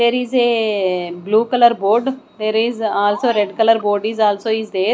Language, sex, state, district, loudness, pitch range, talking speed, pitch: English, female, Odisha, Nuapada, -17 LUFS, 205-235 Hz, 195 wpm, 220 Hz